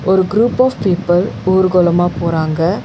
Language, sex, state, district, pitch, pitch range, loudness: Tamil, female, Tamil Nadu, Chennai, 185 Hz, 175-190 Hz, -14 LUFS